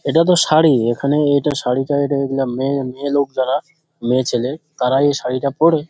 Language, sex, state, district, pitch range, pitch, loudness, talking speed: Bengali, male, West Bengal, Dakshin Dinajpur, 130-150 Hz, 140 Hz, -17 LUFS, 185 wpm